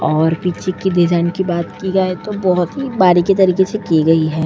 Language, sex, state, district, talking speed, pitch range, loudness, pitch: Hindi, female, Uttar Pradesh, Etah, 230 wpm, 170-190 Hz, -15 LUFS, 180 Hz